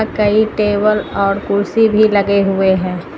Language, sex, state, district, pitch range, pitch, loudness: Hindi, female, Uttar Pradesh, Lucknow, 195-215 Hz, 205 Hz, -14 LUFS